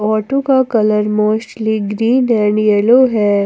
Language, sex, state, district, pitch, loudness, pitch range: Hindi, female, Jharkhand, Ranchi, 215 Hz, -13 LUFS, 210-240 Hz